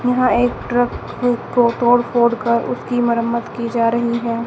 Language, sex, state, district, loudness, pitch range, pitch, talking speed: Hindi, female, Haryana, Charkhi Dadri, -17 LUFS, 235-245 Hz, 235 Hz, 175 wpm